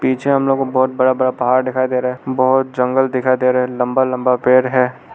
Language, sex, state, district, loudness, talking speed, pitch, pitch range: Hindi, male, Arunachal Pradesh, Lower Dibang Valley, -16 LUFS, 245 wpm, 130 Hz, 125-130 Hz